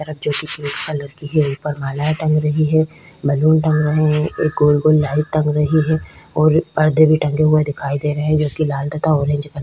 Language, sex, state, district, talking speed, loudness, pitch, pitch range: Hindi, female, Uttar Pradesh, Hamirpur, 225 wpm, -17 LUFS, 150 Hz, 145-155 Hz